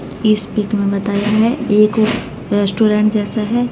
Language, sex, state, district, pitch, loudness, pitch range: Hindi, female, Haryana, Jhajjar, 215 Hz, -15 LUFS, 205-220 Hz